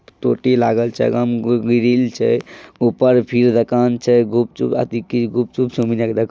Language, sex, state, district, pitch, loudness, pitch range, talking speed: Maithili, male, Bihar, Madhepura, 120 Hz, -17 LUFS, 115-125 Hz, 190 wpm